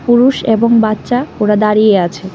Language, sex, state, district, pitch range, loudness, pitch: Bengali, female, Tripura, West Tripura, 210-240 Hz, -12 LUFS, 215 Hz